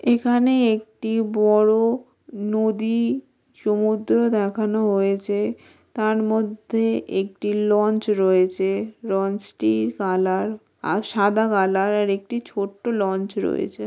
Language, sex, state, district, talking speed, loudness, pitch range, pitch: Bengali, female, West Bengal, Kolkata, 95 wpm, -21 LUFS, 195-220 Hz, 215 Hz